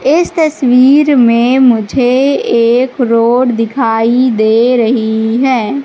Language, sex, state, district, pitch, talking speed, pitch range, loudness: Hindi, female, Madhya Pradesh, Katni, 245 Hz, 100 wpm, 230-265 Hz, -10 LUFS